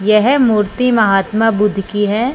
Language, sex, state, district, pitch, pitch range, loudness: Hindi, female, Punjab, Fazilka, 215 Hz, 205-235 Hz, -13 LUFS